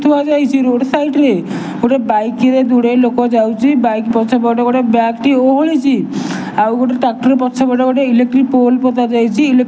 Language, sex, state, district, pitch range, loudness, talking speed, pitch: Odia, male, Odisha, Nuapada, 235-265 Hz, -13 LUFS, 155 wpm, 250 Hz